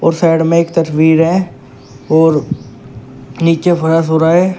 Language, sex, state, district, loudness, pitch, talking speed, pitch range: Hindi, male, Uttar Pradesh, Shamli, -12 LUFS, 160 Hz, 155 wpm, 130-165 Hz